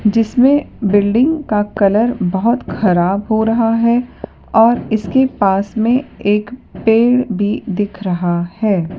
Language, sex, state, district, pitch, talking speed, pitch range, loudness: Hindi, female, Madhya Pradesh, Dhar, 220 Hz, 125 wpm, 200-240 Hz, -15 LUFS